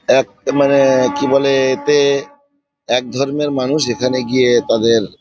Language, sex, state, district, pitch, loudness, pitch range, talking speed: Bengali, male, West Bengal, Paschim Medinipur, 135 Hz, -15 LUFS, 125-140 Hz, 125 wpm